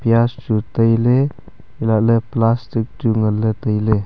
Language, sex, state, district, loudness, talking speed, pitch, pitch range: Wancho, male, Arunachal Pradesh, Longding, -17 LUFS, 150 wpm, 115 Hz, 110-120 Hz